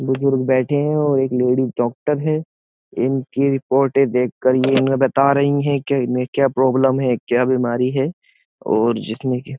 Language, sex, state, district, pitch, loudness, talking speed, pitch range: Hindi, male, Uttar Pradesh, Jyotiba Phule Nagar, 135 Hz, -18 LUFS, 175 wpm, 125-140 Hz